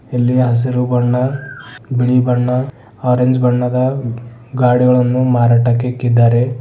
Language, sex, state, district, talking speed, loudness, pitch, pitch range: Kannada, male, Karnataka, Bidar, 90 wpm, -14 LUFS, 125 Hz, 120-125 Hz